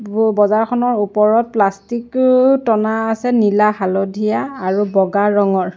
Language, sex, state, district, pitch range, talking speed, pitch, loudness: Assamese, female, Assam, Sonitpur, 200-235 Hz, 115 wpm, 215 Hz, -15 LUFS